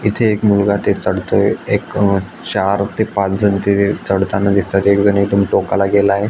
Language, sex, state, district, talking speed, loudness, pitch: Marathi, male, Maharashtra, Aurangabad, 180 wpm, -15 LUFS, 100 Hz